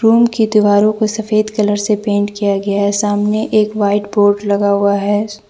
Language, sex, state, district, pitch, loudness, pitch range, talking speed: Hindi, female, Jharkhand, Deoghar, 205 Hz, -14 LUFS, 205-215 Hz, 195 wpm